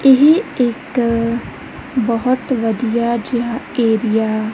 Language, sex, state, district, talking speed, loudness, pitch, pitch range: Punjabi, female, Punjab, Kapurthala, 90 wpm, -17 LUFS, 235 Hz, 230-255 Hz